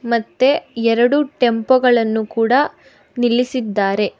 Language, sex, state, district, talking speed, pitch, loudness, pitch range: Kannada, female, Karnataka, Bangalore, 85 wpm, 240 Hz, -16 LUFS, 225-255 Hz